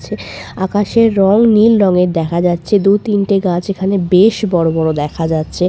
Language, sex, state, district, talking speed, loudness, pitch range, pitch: Bengali, female, West Bengal, Purulia, 170 wpm, -13 LUFS, 175-205 Hz, 190 Hz